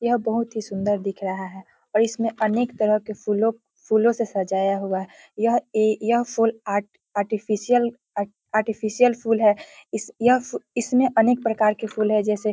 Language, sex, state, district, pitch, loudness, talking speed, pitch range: Hindi, female, Bihar, Muzaffarpur, 220 Hz, -23 LUFS, 180 wpm, 205-235 Hz